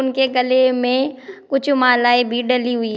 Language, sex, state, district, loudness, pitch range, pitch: Hindi, female, Uttar Pradesh, Shamli, -17 LUFS, 245-265 Hz, 255 Hz